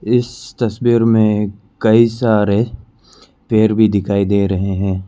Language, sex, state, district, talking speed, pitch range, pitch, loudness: Hindi, male, Arunachal Pradesh, Lower Dibang Valley, 130 wpm, 100-115 Hz, 110 Hz, -15 LUFS